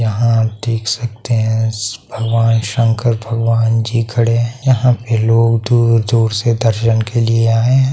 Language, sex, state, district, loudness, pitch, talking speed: Hindi, male, Bihar, Saharsa, -14 LUFS, 115 Hz, 160 wpm